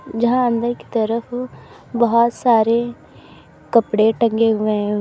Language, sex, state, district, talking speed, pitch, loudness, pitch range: Hindi, female, Uttar Pradesh, Lalitpur, 120 wpm, 230 Hz, -18 LUFS, 220-235 Hz